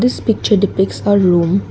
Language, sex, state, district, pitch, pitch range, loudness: English, female, Assam, Kamrup Metropolitan, 200 Hz, 190-210 Hz, -14 LUFS